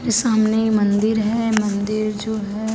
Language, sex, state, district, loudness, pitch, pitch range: Hindi, female, Chhattisgarh, Raipur, -19 LUFS, 215 Hz, 210-220 Hz